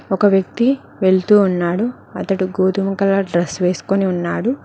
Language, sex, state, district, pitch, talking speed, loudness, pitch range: Telugu, female, Telangana, Mahabubabad, 195 Hz, 130 wpm, -17 LUFS, 185-205 Hz